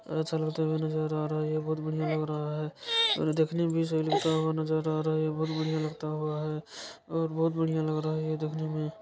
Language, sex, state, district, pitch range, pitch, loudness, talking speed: Maithili, male, Bihar, Supaul, 155-160 Hz, 155 Hz, -30 LUFS, 260 wpm